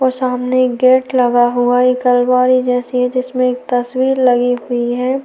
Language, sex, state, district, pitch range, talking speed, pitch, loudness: Hindi, female, Chhattisgarh, Sukma, 245-255 Hz, 170 wpm, 250 Hz, -14 LUFS